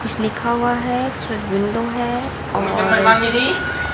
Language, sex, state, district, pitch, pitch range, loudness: Hindi, female, Haryana, Jhajjar, 240 Hz, 220-245 Hz, -18 LUFS